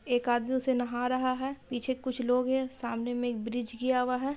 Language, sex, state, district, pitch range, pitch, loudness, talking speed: Hindi, female, Bihar, Purnia, 245-260 Hz, 250 Hz, -31 LUFS, 235 wpm